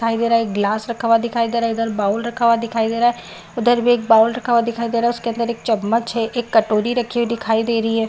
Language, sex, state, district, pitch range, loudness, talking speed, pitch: Hindi, female, Bihar, Madhepura, 225-235 Hz, -18 LUFS, 310 wpm, 230 Hz